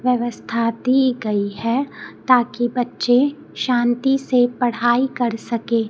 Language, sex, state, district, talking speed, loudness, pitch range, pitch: Hindi, female, Chhattisgarh, Raipur, 110 wpm, -19 LUFS, 235-255 Hz, 245 Hz